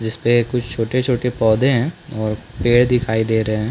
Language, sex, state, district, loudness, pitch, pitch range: Hindi, male, Chhattisgarh, Bastar, -18 LUFS, 120 Hz, 110-125 Hz